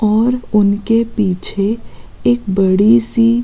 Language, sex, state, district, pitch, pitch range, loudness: Hindi, female, Uttarakhand, Uttarkashi, 220 Hz, 200-230 Hz, -14 LUFS